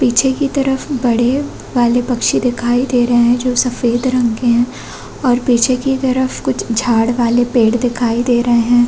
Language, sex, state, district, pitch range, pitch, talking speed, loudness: Hindi, female, Chhattisgarh, Bastar, 235-255 Hz, 245 Hz, 180 wpm, -14 LUFS